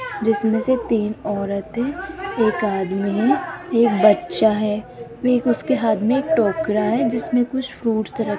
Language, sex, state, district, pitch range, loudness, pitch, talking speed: Hindi, female, Rajasthan, Jaipur, 210-250 Hz, -20 LUFS, 225 Hz, 130 wpm